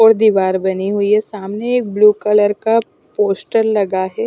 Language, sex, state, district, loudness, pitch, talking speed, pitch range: Hindi, female, Maharashtra, Gondia, -15 LUFS, 210 Hz, 195 wpm, 195-220 Hz